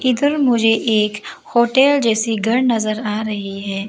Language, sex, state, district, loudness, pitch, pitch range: Hindi, female, Arunachal Pradesh, Lower Dibang Valley, -17 LUFS, 225 Hz, 210-245 Hz